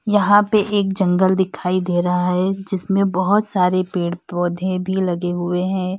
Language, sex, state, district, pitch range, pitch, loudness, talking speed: Hindi, female, Uttar Pradesh, Lalitpur, 180-195 Hz, 185 Hz, -19 LUFS, 170 wpm